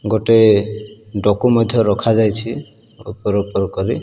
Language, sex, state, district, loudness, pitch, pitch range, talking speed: Odia, male, Odisha, Malkangiri, -15 LUFS, 110 Hz, 105-115 Hz, 105 wpm